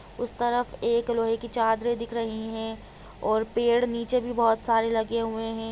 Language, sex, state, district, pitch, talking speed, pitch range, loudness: Hindi, female, Jharkhand, Jamtara, 230 Hz, 220 wpm, 225-235 Hz, -26 LUFS